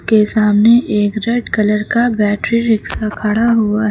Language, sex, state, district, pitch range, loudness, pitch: Hindi, female, Uttar Pradesh, Lucknow, 210-230 Hz, -14 LUFS, 215 Hz